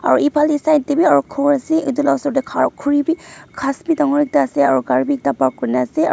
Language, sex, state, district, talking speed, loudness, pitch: Nagamese, female, Nagaland, Dimapur, 285 wpm, -17 LUFS, 285 Hz